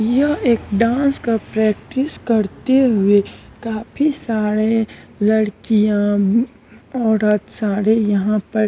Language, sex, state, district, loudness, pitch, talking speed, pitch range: Hindi, female, Bihar, Kishanganj, -17 LUFS, 220 Hz, 110 wpm, 210-235 Hz